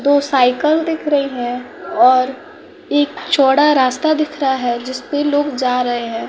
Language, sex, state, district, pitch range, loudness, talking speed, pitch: Hindi, female, Bihar, West Champaran, 255-300 Hz, -16 LUFS, 160 wpm, 285 Hz